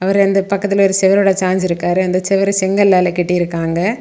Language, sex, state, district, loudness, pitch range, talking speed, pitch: Tamil, female, Tamil Nadu, Kanyakumari, -14 LUFS, 180-195 Hz, 165 wpm, 190 Hz